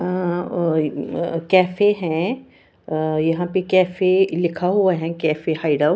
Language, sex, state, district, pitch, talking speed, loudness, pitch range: Hindi, female, Bihar, Patna, 175 Hz, 130 wpm, -20 LUFS, 160-185 Hz